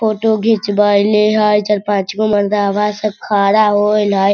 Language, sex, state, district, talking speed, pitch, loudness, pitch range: Hindi, female, Bihar, Sitamarhi, 125 wpm, 210 Hz, -14 LUFS, 205-215 Hz